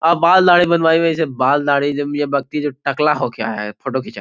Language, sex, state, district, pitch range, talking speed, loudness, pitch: Hindi, male, Bihar, Gopalganj, 135-165 Hz, 240 wpm, -16 LUFS, 145 Hz